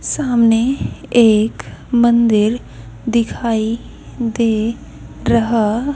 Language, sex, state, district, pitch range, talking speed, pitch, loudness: Hindi, female, Haryana, Jhajjar, 220-235 Hz, 60 wpm, 230 Hz, -16 LUFS